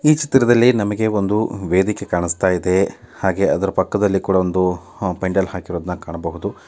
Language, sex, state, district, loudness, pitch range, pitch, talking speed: Kannada, male, Karnataka, Dakshina Kannada, -18 LUFS, 90-105 Hz, 95 Hz, 135 wpm